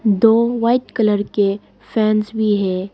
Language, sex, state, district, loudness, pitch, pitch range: Hindi, female, Arunachal Pradesh, Lower Dibang Valley, -17 LUFS, 215 Hz, 205-225 Hz